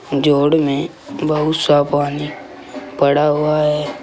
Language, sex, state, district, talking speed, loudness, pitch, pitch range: Hindi, male, Uttar Pradesh, Saharanpur, 120 wpm, -16 LUFS, 150 Hz, 145-150 Hz